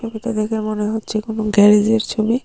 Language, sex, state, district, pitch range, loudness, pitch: Bengali, female, Tripura, Unakoti, 210-220 Hz, -17 LUFS, 215 Hz